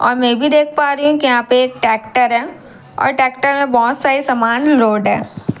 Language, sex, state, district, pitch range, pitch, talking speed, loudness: Hindi, female, Bihar, Katihar, 240-280 Hz, 255 Hz, 225 wpm, -14 LUFS